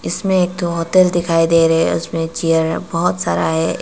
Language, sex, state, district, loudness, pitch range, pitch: Hindi, female, Arunachal Pradesh, Papum Pare, -16 LUFS, 165-175 Hz, 165 Hz